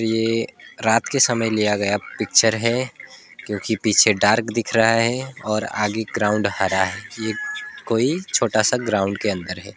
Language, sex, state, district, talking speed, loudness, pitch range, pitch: Hindi, male, West Bengal, Alipurduar, 165 wpm, -20 LUFS, 105-115 Hz, 110 Hz